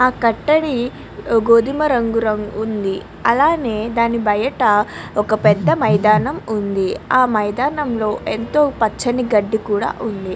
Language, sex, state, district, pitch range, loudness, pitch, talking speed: Telugu, female, Andhra Pradesh, Krishna, 210-245 Hz, -17 LUFS, 220 Hz, 60 wpm